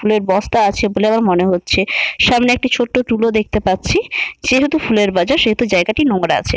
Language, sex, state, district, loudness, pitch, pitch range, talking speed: Bengali, female, West Bengal, Malda, -14 LUFS, 220 Hz, 190-250 Hz, 190 wpm